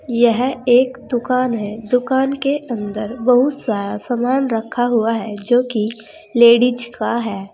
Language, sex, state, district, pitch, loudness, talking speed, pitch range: Hindi, female, Uttar Pradesh, Saharanpur, 240 Hz, -17 LUFS, 135 wpm, 220-250 Hz